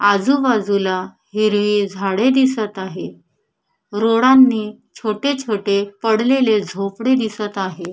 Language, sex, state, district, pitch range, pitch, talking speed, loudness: Marathi, female, Maharashtra, Chandrapur, 200-240 Hz, 210 Hz, 90 wpm, -17 LUFS